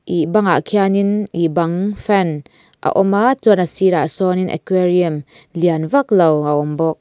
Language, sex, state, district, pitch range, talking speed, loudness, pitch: Mizo, female, Mizoram, Aizawl, 165-200 Hz, 190 wpm, -15 LUFS, 180 Hz